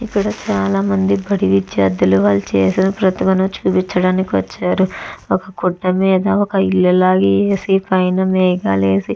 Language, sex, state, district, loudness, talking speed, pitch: Telugu, female, Andhra Pradesh, Chittoor, -15 LUFS, 140 wpm, 185 Hz